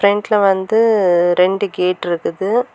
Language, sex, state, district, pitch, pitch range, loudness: Tamil, female, Tamil Nadu, Kanyakumari, 195 Hz, 180-205 Hz, -15 LUFS